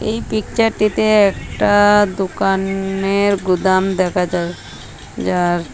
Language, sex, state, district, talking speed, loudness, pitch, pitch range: Bengali, female, Assam, Hailakandi, 95 wpm, -16 LUFS, 195 Hz, 185-210 Hz